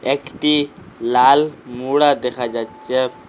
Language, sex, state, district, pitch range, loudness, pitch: Bengali, male, Assam, Hailakandi, 125-145 Hz, -17 LUFS, 130 Hz